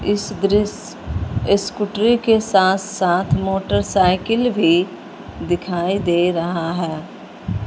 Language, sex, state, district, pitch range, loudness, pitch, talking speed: Hindi, male, Punjab, Fazilka, 175-205 Hz, -18 LUFS, 190 Hz, 95 wpm